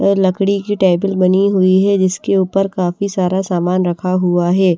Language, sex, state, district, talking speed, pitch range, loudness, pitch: Hindi, female, Odisha, Nuapada, 175 wpm, 180-195 Hz, -15 LUFS, 190 Hz